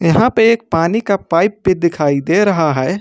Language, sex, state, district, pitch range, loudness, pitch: Hindi, male, Uttar Pradesh, Lucknow, 165-205 Hz, -14 LUFS, 185 Hz